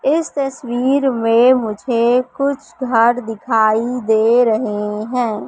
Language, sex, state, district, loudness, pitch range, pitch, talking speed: Hindi, female, Madhya Pradesh, Katni, -16 LUFS, 225-260 Hz, 240 Hz, 110 wpm